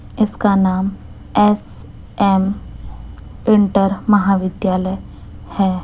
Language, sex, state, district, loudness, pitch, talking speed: Hindi, female, Chhattisgarh, Raipur, -16 LUFS, 185 Hz, 70 wpm